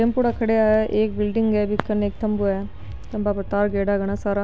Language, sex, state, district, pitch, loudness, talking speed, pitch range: Rajasthani, male, Rajasthan, Nagaur, 210 Hz, -22 LUFS, 240 wpm, 200-215 Hz